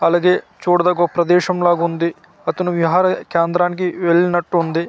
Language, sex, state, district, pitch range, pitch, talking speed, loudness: Telugu, male, Andhra Pradesh, Manyam, 170-180 Hz, 175 Hz, 120 wpm, -17 LUFS